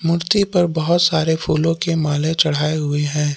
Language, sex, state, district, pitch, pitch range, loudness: Hindi, male, Jharkhand, Palamu, 160 Hz, 150-170 Hz, -18 LUFS